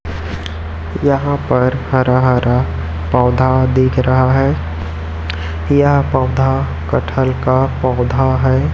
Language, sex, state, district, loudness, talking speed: Hindi, male, Chhattisgarh, Raipur, -15 LUFS, 95 wpm